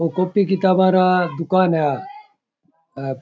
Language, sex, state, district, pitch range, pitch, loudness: Rajasthani, male, Rajasthan, Churu, 165-190 Hz, 185 Hz, -18 LUFS